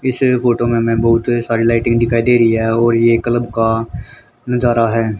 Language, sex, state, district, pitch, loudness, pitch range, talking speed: Hindi, female, Haryana, Charkhi Dadri, 115 Hz, -14 LUFS, 115-120 Hz, 185 wpm